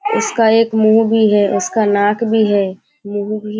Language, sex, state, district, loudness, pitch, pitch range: Hindi, female, Bihar, Kishanganj, -14 LUFS, 215 Hz, 205-225 Hz